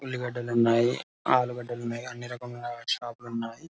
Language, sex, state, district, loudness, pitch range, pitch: Telugu, male, Telangana, Karimnagar, -29 LUFS, 120-125 Hz, 120 Hz